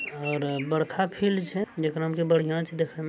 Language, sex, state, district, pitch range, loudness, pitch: Angika, male, Bihar, Araria, 155-170 Hz, -27 LUFS, 160 Hz